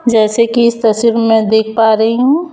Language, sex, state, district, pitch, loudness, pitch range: Hindi, female, Chhattisgarh, Raipur, 230 Hz, -11 LUFS, 220-235 Hz